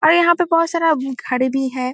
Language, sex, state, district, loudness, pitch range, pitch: Hindi, female, Bihar, Saharsa, -17 LUFS, 260-330 Hz, 310 Hz